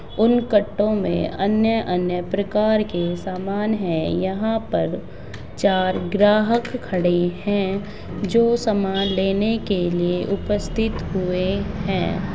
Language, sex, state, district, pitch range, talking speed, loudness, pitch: Hindi, female, Bihar, Begusarai, 185-215 Hz, 110 wpm, -21 LUFS, 200 Hz